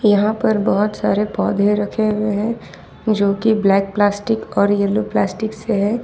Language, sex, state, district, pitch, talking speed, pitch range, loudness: Hindi, female, Jharkhand, Ranchi, 205 Hz, 170 wpm, 200-215 Hz, -18 LUFS